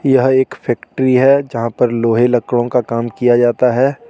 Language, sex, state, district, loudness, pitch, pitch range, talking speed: Hindi, male, Jharkhand, Deoghar, -14 LUFS, 125 Hz, 120-130 Hz, 190 wpm